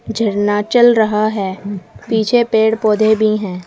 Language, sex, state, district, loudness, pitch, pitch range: Hindi, female, Uttar Pradesh, Saharanpur, -14 LUFS, 215 Hz, 205-220 Hz